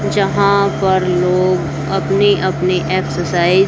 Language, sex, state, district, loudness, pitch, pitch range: Hindi, female, Haryana, Charkhi Dadri, -15 LUFS, 185 Hz, 175-195 Hz